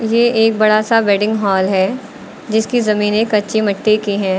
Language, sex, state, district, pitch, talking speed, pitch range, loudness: Hindi, female, Uttar Pradesh, Lucknow, 215 Hz, 190 wpm, 205-225 Hz, -15 LUFS